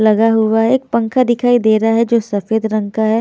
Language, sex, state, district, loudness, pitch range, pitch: Hindi, female, Haryana, Jhajjar, -14 LUFS, 220-235 Hz, 225 Hz